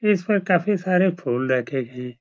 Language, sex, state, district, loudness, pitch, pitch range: Hindi, male, Uttar Pradesh, Etah, -22 LUFS, 175 Hz, 125-195 Hz